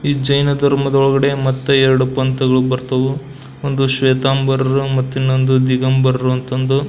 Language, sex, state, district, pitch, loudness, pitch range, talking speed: Kannada, male, Karnataka, Belgaum, 135 Hz, -15 LUFS, 130-135 Hz, 120 wpm